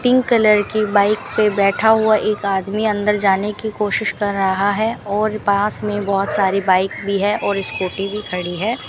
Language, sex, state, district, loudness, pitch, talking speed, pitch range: Hindi, female, Rajasthan, Bikaner, -18 LUFS, 205 Hz, 195 wpm, 200-215 Hz